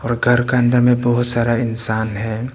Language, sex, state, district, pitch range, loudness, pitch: Hindi, male, Arunachal Pradesh, Papum Pare, 115-120 Hz, -16 LUFS, 120 Hz